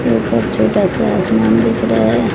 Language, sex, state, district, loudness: Hindi, female, Odisha, Malkangiri, -14 LUFS